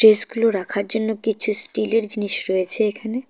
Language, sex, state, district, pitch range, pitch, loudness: Bengali, female, West Bengal, Cooch Behar, 205-225 Hz, 220 Hz, -18 LUFS